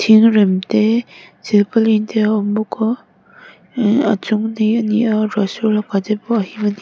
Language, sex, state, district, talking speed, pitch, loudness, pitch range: Mizo, female, Mizoram, Aizawl, 195 wpm, 215 Hz, -16 LUFS, 210-225 Hz